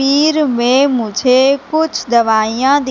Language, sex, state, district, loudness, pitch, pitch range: Hindi, female, Madhya Pradesh, Katni, -13 LUFS, 260 Hz, 240-285 Hz